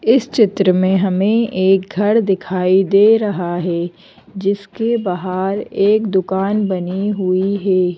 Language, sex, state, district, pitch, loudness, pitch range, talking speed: Hindi, female, Madhya Pradesh, Bhopal, 195 Hz, -16 LUFS, 185-210 Hz, 130 wpm